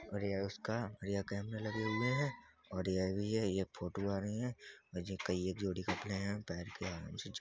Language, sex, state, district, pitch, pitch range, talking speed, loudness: Hindi, male, Uttar Pradesh, Budaun, 100 Hz, 95-110 Hz, 210 wpm, -40 LUFS